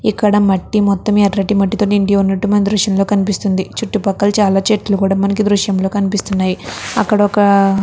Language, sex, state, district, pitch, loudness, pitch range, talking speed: Telugu, female, Andhra Pradesh, Krishna, 200 Hz, -14 LUFS, 195-205 Hz, 170 wpm